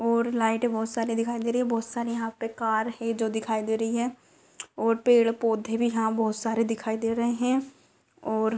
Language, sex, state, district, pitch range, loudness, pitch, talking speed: Hindi, female, Uttar Pradesh, Ghazipur, 225-235 Hz, -27 LUFS, 230 Hz, 215 wpm